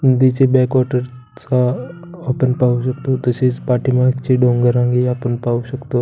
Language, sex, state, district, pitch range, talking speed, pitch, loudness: Marathi, male, Maharashtra, Pune, 125-130 Hz, 140 wpm, 125 Hz, -16 LUFS